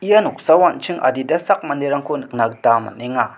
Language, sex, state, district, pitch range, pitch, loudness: Garo, male, Meghalaya, South Garo Hills, 120-165 Hz, 140 Hz, -17 LUFS